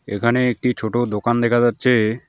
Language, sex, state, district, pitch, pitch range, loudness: Bengali, male, West Bengal, Alipurduar, 120 Hz, 110-125 Hz, -18 LUFS